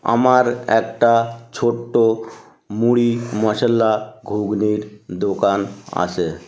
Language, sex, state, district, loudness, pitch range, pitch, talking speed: Bengali, male, West Bengal, North 24 Parganas, -18 LUFS, 105-120 Hz, 115 Hz, 75 wpm